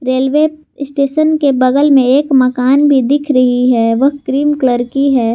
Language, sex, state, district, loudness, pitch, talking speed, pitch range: Hindi, female, Jharkhand, Garhwa, -12 LUFS, 270 Hz, 180 wpm, 255-290 Hz